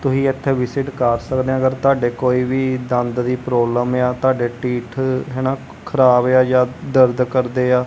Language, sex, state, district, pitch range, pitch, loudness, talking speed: Punjabi, male, Punjab, Kapurthala, 125-130 Hz, 125 Hz, -18 LUFS, 175 wpm